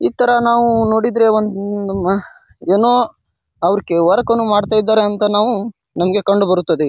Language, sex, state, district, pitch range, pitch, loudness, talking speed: Kannada, male, Karnataka, Bijapur, 195-230 Hz, 210 Hz, -15 LUFS, 130 wpm